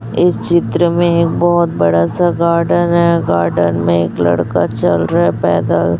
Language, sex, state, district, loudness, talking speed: Hindi, female, Chhattisgarh, Raipur, -13 LUFS, 160 wpm